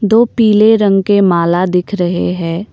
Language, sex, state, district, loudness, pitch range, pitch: Hindi, female, Assam, Kamrup Metropolitan, -12 LUFS, 175-215 Hz, 195 Hz